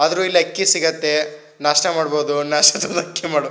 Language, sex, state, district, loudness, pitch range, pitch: Kannada, male, Karnataka, Shimoga, -17 LUFS, 150-175 Hz, 160 Hz